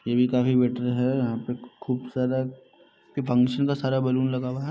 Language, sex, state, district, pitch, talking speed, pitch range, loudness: Hindi, male, Bihar, Muzaffarpur, 125 Hz, 205 wpm, 125-130 Hz, -25 LUFS